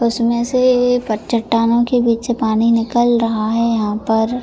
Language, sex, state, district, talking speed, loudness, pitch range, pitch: Hindi, female, Jharkhand, Jamtara, 160 wpm, -16 LUFS, 225-240 Hz, 235 Hz